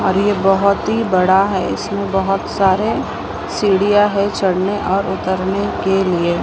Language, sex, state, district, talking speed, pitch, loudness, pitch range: Hindi, female, Maharashtra, Mumbai Suburban, 150 wpm, 195 Hz, -16 LUFS, 190-200 Hz